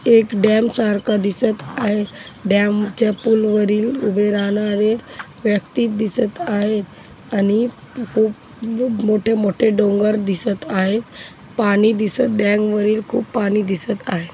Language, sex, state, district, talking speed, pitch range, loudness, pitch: Marathi, female, Maharashtra, Chandrapur, 120 wpm, 205-225 Hz, -18 LUFS, 215 Hz